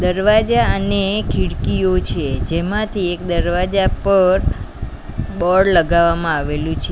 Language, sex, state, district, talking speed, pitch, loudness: Gujarati, female, Gujarat, Valsad, 105 wpm, 170 Hz, -17 LUFS